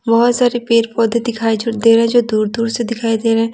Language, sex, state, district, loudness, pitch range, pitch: Hindi, female, Bihar, Patna, -15 LUFS, 225-235 Hz, 230 Hz